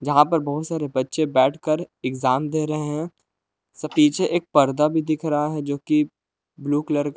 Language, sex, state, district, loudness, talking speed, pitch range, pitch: Hindi, male, Jharkhand, Palamu, -22 LUFS, 190 wpm, 145-155 Hz, 150 Hz